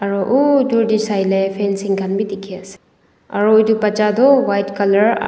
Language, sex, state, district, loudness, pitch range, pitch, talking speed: Nagamese, female, Nagaland, Dimapur, -16 LUFS, 195-220 Hz, 205 Hz, 170 wpm